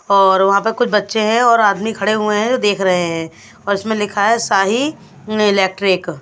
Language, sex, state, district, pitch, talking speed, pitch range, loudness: Hindi, female, Bihar, West Champaran, 205 Hz, 210 wpm, 195-220 Hz, -15 LUFS